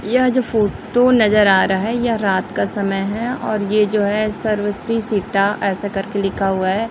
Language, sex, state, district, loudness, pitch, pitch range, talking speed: Hindi, female, Chhattisgarh, Raipur, -18 LUFS, 210 Hz, 195-225 Hz, 215 wpm